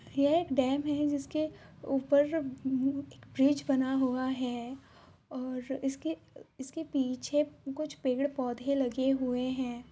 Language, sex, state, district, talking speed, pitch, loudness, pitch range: Hindi, female, Bihar, East Champaran, 125 wpm, 270 Hz, -32 LUFS, 260-285 Hz